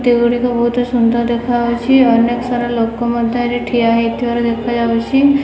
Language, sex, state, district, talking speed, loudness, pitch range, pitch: Odia, female, Odisha, Khordha, 130 wpm, -14 LUFS, 235-245 Hz, 240 Hz